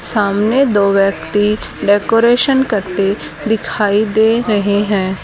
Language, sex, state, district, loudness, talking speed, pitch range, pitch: Hindi, female, Haryana, Charkhi Dadri, -14 LUFS, 105 wpm, 200-225 Hz, 205 Hz